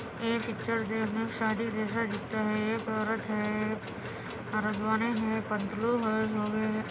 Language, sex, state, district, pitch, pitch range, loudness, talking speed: Hindi, female, Andhra Pradesh, Anantapur, 220 Hz, 215-225 Hz, -31 LUFS, 105 wpm